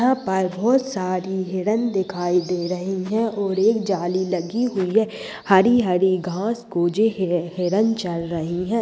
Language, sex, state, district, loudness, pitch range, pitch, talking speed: Hindi, female, Bihar, Purnia, -21 LUFS, 180-220 Hz, 190 Hz, 165 wpm